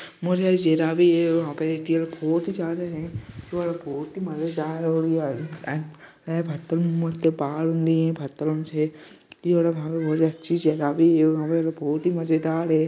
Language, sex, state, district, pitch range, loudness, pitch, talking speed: Hindi, male, Jharkhand, Jamtara, 155-165 Hz, -24 LUFS, 160 Hz, 85 wpm